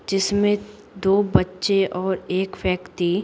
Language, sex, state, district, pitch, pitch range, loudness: Hindi, female, Bihar, Patna, 195 Hz, 185-200 Hz, -22 LUFS